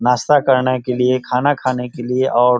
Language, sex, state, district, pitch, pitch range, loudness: Hindi, male, Bihar, Darbhanga, 125 Hz, 125-130 Hz, -16 LUFS